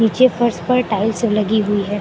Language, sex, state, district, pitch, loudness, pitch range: Hindi, female, Uttar Pradesh, Lucknow, 220 Hz, -17 LUFS, 210-240 Hz